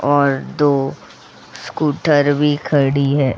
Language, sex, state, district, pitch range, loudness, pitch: Hindi, female, Goa, North and South Goa, 135-145 Hz, -16 LUFS, 140 Hz